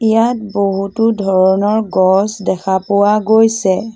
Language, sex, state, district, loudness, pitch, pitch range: Assamese, female, Assam, Sonitpur, -13 LUFS, 200 Hz, 190-220 Hz